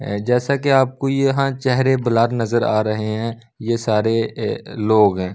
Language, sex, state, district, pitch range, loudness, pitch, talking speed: Hindi, male, Delhi, New Delhi, 110-130 Hz, -18 LUFS, 115 Hz, 155 wpm